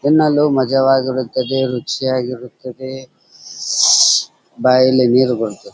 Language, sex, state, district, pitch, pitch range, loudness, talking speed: Kannada, female, Karnataka, Dharwad, 130 Hz, 125-135 Hz, -14 LUFS, 85 wpm